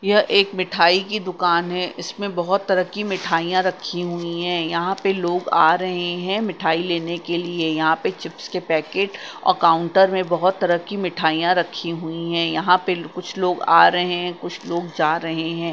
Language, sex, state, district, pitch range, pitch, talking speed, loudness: Hindi, female, Punjab, Kapurthala, 170-185 Hz, 175 Hz, 195 wpm, -20 LUFS